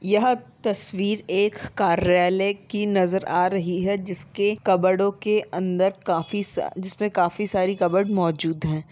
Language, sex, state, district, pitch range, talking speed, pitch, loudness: Hindi, female, Uttarakhand, Tehri Garhwal, 180-205 Hz, 140 wpm, 190 Hz, -23 LUFS